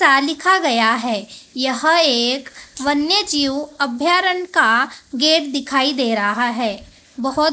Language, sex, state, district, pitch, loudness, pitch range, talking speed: Hindi, male, Maharashtra, Gondia, 280 Hz, -17 LUFS, 250-315 Hz, 135 wpm